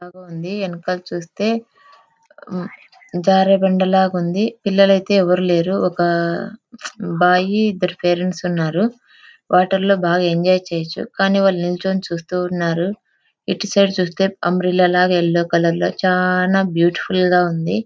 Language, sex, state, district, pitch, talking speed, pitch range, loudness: Telugu, female, Andhra Pradesh, Anantapur, 185 Hz, 120 wpm, 175-195 Hz, -17 LUFS